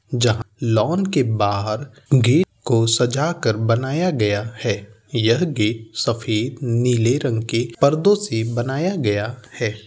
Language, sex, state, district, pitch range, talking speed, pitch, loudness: Bhojpuri, male, Uttar Pradesh, Gorakhpur, 110-135 Hz, 140 wpm, 115 Hz, -20 LUFS